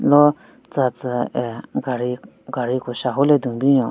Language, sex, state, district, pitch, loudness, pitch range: Rengma, female, Nagaland, Kohima, 125 Hz, -20 LUFS, 125-140 Hz